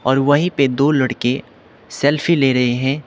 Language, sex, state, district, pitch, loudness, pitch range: Hindi, male, Sikkim, Gangtok, 135 Hz, -16 LUFS, 130-145 Hz